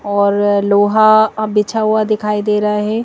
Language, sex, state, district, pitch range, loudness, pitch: Hindi, female, Madhya Pradesh, Bhopal, 205-215 Hz, -13 LUFS, 210 Hz